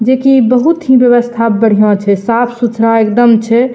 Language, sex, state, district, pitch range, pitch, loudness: Maithili, female, Bihar, Purnia, 225-250 Hz, 235 Hz, -10 LUFS